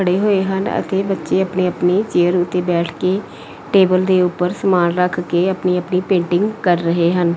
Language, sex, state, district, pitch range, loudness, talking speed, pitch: Punjabi, female, Punjab, Pathankot, 175-190 Hz, -17 LUFS, 180 wpm, 180 Hz